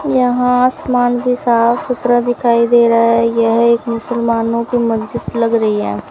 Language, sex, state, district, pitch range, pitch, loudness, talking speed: Hindi, female, Rajasthan, Bikaner, 230-245 Hz, 235 Hz, -14 LUFS, 165 wpm